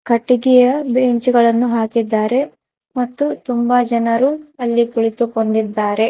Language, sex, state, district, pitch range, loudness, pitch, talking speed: Kannada, female, Karnataka, Raichur, 230-250 Hz, -16 LUFS, 240 Hz, 90 wpm